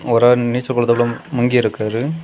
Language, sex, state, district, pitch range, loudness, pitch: Tamil, male, Tamil Nadu, Kanyakumari, 120-125 Hz, -17 LUFS, 120 Hz